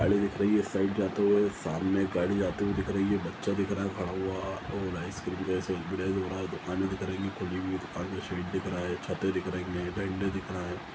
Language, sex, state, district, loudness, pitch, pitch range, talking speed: Hindi, male, Bihar, Samastipur, -31 LUFS, 95 Hz, 90-100 Hz, 240 wpm